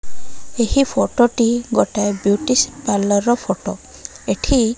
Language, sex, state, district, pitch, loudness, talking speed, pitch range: Odia, female, Odisha, Malkangiri, 235 Hz, -18 LUFS, 140 wpm, 205-250 Hz